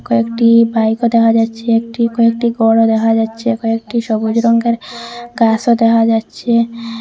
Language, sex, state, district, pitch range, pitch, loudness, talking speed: Bengali, female, Assam, Hailakandi, 225-235 Hz, 230 Hz, -13 LUFS, 130 wpm